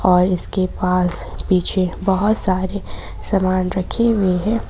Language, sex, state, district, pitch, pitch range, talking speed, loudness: Hindi, female, Jharkhand, Ranchi, 185 Hz, 185-200 Hz, 130 wpm, -19 LUFS